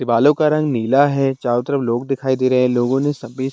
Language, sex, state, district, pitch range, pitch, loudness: Hindi, male, Bihar, Bhagalpur, 125-140 Hz, 130 Hz, -17 LUFS